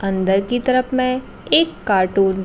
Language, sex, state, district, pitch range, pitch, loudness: Hindi, female, Bihar, Kaimur, 195-255 Hz, 205 Hz, -18 LUFS